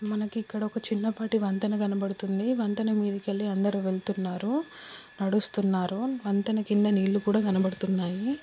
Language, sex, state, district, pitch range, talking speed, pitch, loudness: Telugu, female, Andhra Pradesh, Guntur, 195-220 Hz, 115 wpm, 205 Hz, -28 LUFS